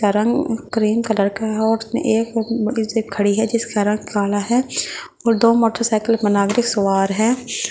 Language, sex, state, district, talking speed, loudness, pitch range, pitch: Hindi, female, Delhi, New Delhi, 165 wpm, -18 LUFS, 205-230 Hz, 225 Hz